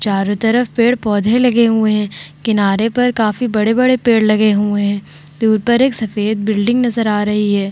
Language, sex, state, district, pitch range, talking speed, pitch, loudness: Hindi, female, Bihar, Vaishali, 205-235 Hz, 185 wpm, 215 Hz, -14 LUFS